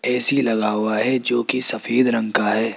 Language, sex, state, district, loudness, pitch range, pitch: Hindi, male, Rajasthan, Jaipur, -19 LUFS, 110-125 Hz, 115 Hz